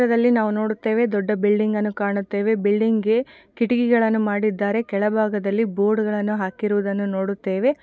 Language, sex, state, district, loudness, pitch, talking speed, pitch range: Kannada, female, Karnataka, Shimoga, -21 LUFS, 210 Hz, 115 wpm, 205-225 Hz